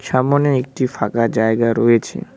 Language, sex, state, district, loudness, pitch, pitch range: Bengali, male, West Bengal, Alipurduar, -17 LUFS, 120 Hz, 115-130 Hz